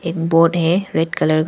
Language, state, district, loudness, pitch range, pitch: Hindi, Arunachal Pradesh, Lower Dibang Valley, -17 LUFS, 165-170 Hz, 165 Hz